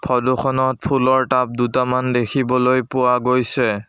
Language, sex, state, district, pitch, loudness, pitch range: Assamese, male, Assam, Sonitpur, 125 Hz, -18 LUFS, 125-130 Hz